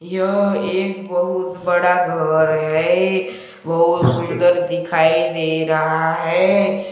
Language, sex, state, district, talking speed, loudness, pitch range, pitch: Hindi, male, Chhattisgarh, Balrampur, 105 wpm, -17 LUFS, 160-185 Hz, 175 Hz